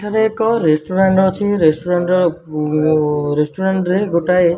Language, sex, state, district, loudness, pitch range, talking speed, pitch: Odia, male, Odisha, Malkangiri, -16 LUFS, 155-190 Hz, 120 wpm, 180 Hz